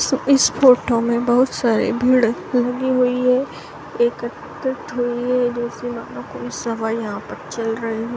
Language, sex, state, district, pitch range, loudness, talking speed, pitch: Hindi, female, Bihar, Saran, 235-250 Hz, -19 LUFS, 125 wpm, 240 Hz